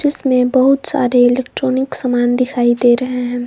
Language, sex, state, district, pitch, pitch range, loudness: Hindi, female, Jharkhand, Garhwa, 250 Hz, 245-260 Hz, -14 LUFS